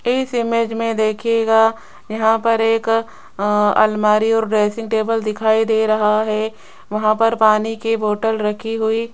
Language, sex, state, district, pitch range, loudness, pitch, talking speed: Hindi, female, Rajasthan, Jaipur, 215-225 Hz, -17 LUFS, 220 Hz, 155 wpm